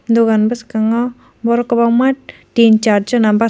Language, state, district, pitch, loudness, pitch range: Kokborok, Tripura, Dhalai, 230 Hz, -14 LUFS, 220-240 Hz